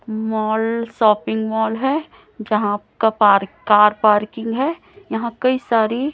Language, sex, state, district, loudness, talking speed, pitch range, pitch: Hindi, female, Chhattisgarh, Raipur, -18 LUFS, 115 wpm, 215-250 Hz, 220 Hz